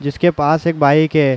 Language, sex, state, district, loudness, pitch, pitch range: Hindi, male, Uttar Pradesh, Jalaun, -14 LUFS, 150 Hz, 145-160 Hz